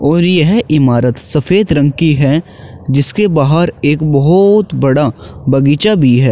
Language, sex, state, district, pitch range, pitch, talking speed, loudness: Hindi, male, Uttar Pradesh, Shamli, 135-170 Hz, 145 Hz, 140 wpm, -11 LUFS